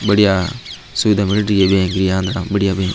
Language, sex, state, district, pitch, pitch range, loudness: Marwari, male, Rajasthan, Nagaur, 100 Hz, 95-105 Hz, -16 LUFS